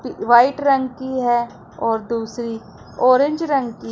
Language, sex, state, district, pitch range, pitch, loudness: Hindi, female, Punjab, Pathankot, 230-265 Hz, 245 Hz, -18 LUFS